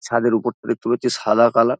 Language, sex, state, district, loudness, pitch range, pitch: Bengali, male, West Bengal, Dakshin Dinajpur, -19 LUFS, 115-120 Hz, 120 Hz